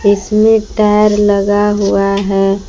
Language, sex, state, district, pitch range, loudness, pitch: Hindi, female, Jharkhand, Palamu, 200-210 Hz, -11 LUFS, 205 Hz